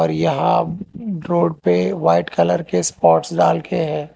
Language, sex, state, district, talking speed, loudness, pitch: Hindi, male, Telangana, Hyderabad, 145 wpm, -18 LUFS, 150 Hz